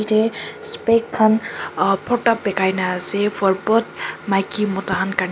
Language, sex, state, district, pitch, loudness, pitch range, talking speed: Nagamese, male, Nagaland, Kohima, 205 Hz, -19 LUFS, 195-230 Hz, 160 wpm